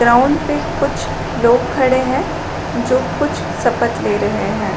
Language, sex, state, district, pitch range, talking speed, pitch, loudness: Hindi, female, Chhattisgarh, Raigarh, 240-260 Hz, 150 wpm, 255 Hz, -17 LUFS